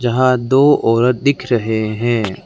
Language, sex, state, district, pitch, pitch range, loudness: Hindi, male, Arunachal Pradesh, Lower Dibang Valley, 120 Hz, 115-130 Hz, -15 LUFS